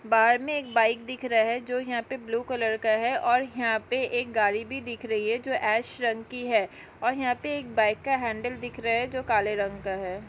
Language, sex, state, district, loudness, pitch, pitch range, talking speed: Hindi, female, Uttarakhand, Tehri Garhwal, -27 LUFS, 235 Hz, 220-250 Hz, 245 wpm